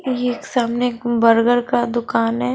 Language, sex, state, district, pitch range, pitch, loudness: Hindi, female, Haryana, Charkhi Dadri, 230-245 Hz, 240 Hz, -18 LUFS